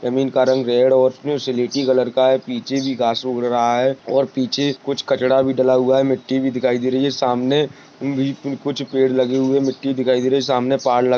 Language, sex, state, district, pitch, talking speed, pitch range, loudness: Hindi, male, Maharashtra, Sindhudurg, 130 Hz, 215 wpm, 125-135 Hz, -18 LUFS